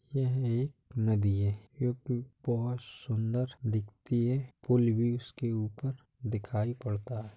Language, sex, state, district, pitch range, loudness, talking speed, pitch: Hindi, male, Uttar Pradesh, Hamirpur, 110-125 Hz, -33 LUFS, 130 wpm, 120 Hz